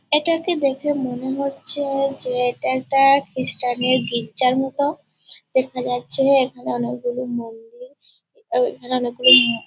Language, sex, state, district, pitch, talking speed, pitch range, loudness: Bengali, female, West Bengal, Purulia, 255 Hz, 125 wpm, 245-275 Hz, -19 LUFS